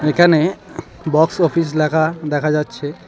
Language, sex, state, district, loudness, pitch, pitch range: Bengali, male, West Bengal, Cooch Behar, -16 LUFS, 155 Hz, 150-165 Hz